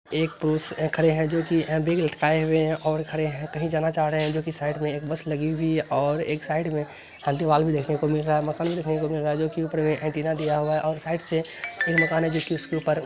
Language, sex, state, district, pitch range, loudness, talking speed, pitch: Hindi, male, Bihar, Lakhisarai, 155-160 Hz, -24 LUFS, 190 wpm, 155 Hz